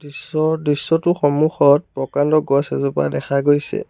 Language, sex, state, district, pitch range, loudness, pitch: Assamese, male, Assam, Sonitpur, 140-155 Hz, -18 LUFS, 145 Hz